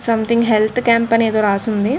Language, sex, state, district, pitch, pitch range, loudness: Telugu, female, Andhra Pradesh, Krishna, 225 Hz, 215-235 Hz, -15 LUFS